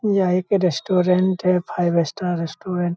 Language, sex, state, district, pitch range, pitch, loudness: Hindi, male, Bihar, Saharsa, 175-185 Hz, 180 Hz, -20 LUFS